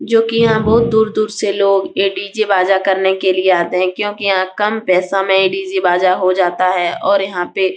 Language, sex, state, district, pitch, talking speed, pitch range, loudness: Hindi, female, Bihar, Jahanabad, 195 Hz, 230 wpm, 185-205 Hz, -14 LUFS